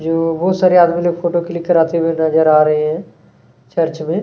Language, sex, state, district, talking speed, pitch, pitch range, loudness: Hindi, male, Chhattisgarh, Kabirdham, 225 wpm, 165 Hz, 160-175 Hz, -15 LUFS